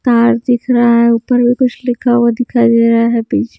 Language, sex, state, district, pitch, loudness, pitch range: Hindi, female, Haryana, Charkhi Dadri, 240 Hz, -12 LUFS, 235-245 Hz